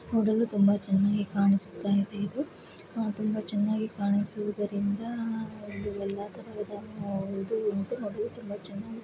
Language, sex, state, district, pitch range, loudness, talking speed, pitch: Kannada, female, Karnataka, Chamarajanagar, 200-220 Hz, -30 LUFS, 60 wpm, 205 Hz